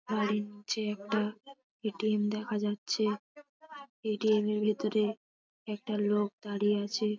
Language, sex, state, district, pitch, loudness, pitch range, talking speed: Bengali, female, West Bengal, Paschim Medinipur, 215 Hz, -32 LUFS, 210-220 Hz, 110 wpm